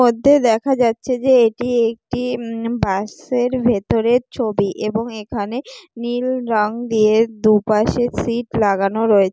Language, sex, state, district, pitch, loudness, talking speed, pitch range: Bengali, female, West Bengal, Jalpaiguri, 230 Hz, -18 LUFS, 120 wpm, 215-245 Hz